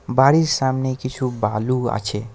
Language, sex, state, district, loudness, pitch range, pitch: Bengali, male, West Bengal, Alipurduar, -20 LUFS, 110-130 Hz, 130 Hz